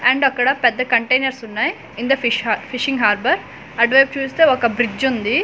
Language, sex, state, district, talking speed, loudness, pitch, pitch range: Telugu, female, Andhra Pradesh, Manyam, 165 wpm, -17 LUFS, 255 Hz, 235-270 Hz